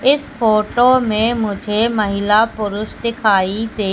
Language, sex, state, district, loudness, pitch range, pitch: Hindi, female, Madhya Pradesh, Katni, -16 LUFS, 210-230 Hz, 215 Hz